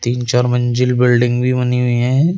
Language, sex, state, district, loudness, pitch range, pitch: Hindi, male, Uttar Pradesh, Shamli, -15 LUFS, 120-125 Hz, 125 Hz